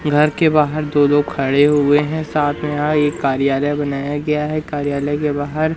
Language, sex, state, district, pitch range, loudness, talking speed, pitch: Hindi, male, Madhya Pradesh, Umaria, 145-150 Hz, -17 LUFS, 195 wpm, 145 Hz